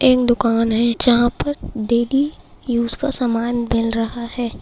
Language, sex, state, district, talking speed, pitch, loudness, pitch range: Hindi, female, Bihar, Saharsa, 155 wpm, 240 Hz, -18 LUFS, 230-250 Hz